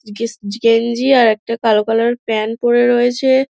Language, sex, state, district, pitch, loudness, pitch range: Bengali, female, West Bengal, Dakshin Dinajpur, 230 Hz, -15 LUFS, 220-245 Hz